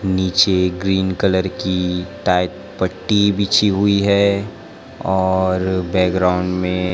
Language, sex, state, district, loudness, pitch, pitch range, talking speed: Hindi, male, Chhattisgarh, Raipur, -17 LUFS, 95 Hz, 90-100 Hz, 105 wpm